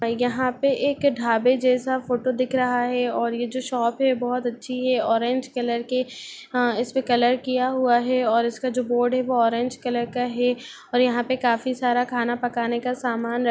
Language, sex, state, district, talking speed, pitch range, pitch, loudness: Hindi, female, Chhattisgarh, Sarguja, 200 wpm, 240-255 Hz, 245 Hz, -23 LUFS